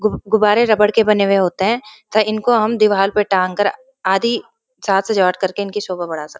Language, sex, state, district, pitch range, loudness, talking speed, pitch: Hindi, female, Uttarakhand, Uttarkashi, 195-220 Hz, -16 LUFS, 225 wpm, 210 Hz